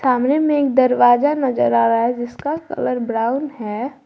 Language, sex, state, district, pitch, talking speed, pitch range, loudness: Hindi, female, Jharkhand, Garhwa, 255 Hz, 175 wpm, 235-285 Hz, -18 LUFS